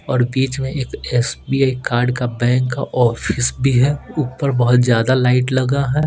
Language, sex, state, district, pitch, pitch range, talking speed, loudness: Hindi, male, Bihar, Patna, 125 Hz, 125-135 Hz, 170 wpm, -17 LUFS